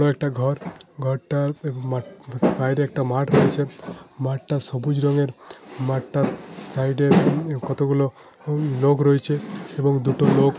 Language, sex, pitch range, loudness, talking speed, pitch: Bengali, male, 130-145 Hz, -22 LUFS, 160 wpm, 140 Hz